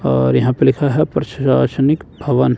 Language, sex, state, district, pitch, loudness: Hindi, male, Chandigarh, Chandigarh, 125 Hz, -16 LUFS